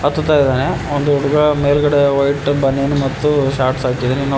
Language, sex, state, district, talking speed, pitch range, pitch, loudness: Kannada, male, Karnataka, Koppal, 150 wpm, 135-145 Hz, 140 Hz, -15 LUFS